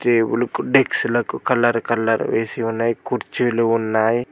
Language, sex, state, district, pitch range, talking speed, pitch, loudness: Telugu, male, Telangana, Mahabubabad, 115-120 Hz, 95 wpm, 115 Hz, -19 LUFS